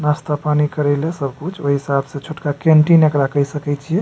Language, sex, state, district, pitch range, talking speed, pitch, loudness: Maithili, male, Bihar, Supaul, 140-155 Hz, 225 wpm, 150 Hz, -17 LUFS